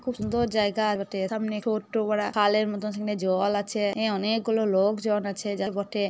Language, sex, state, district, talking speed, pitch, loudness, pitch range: Bengali, female, West Bengal, Jhargram, 155 wpm, 210 Hz, -26 LUFS, 200-220 Hz